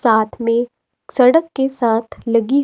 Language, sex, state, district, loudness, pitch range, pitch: Hindi, female, Himachal Pradesh, Shimla, -17 LUFS, 230-265 Hz, 240 Hz